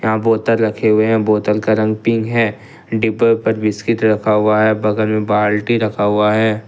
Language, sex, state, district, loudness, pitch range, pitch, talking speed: Hindi, male, Jharkhand, Ranchi, -15 LUFS, 105-110 Hz, 110 Hz, 195 wpm